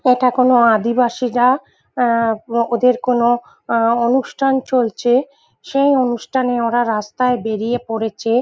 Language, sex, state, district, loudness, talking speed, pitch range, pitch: Bengali, female, West Bengal, Jhargram, -17 LUFS, 105 wpm, 230-255 Hz, 245 Hz